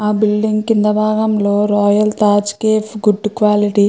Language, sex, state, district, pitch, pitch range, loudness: Telugu, female, Andhra Pradesh, Chittoor, 210 Hz, 205-215 Hz, -14 LUFS